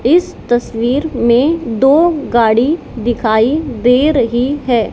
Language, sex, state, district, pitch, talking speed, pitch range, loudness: Hindi, female, Haryana, Charkhi Dadri, 245 Hz, 110 wpm, 235-295 Hz, -13 LUFS